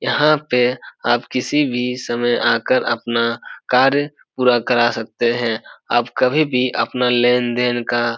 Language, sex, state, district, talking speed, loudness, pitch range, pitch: Hindi, male, Bihar, Supaul, 145 wpm, -18 LUFS, 120-125 Hz, 125 Hz